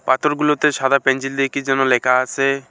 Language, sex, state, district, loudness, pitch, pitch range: Bengali, male, West Bengal, Alipurduar, -17 LUFS, 135 Hz, 130-140 Hz